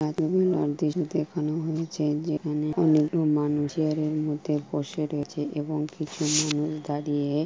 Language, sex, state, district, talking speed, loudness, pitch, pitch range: Bengali, female, West Bengal, Kolkata, 135 wpm, -27 LUFS, 155 Hz, 150-155 Hz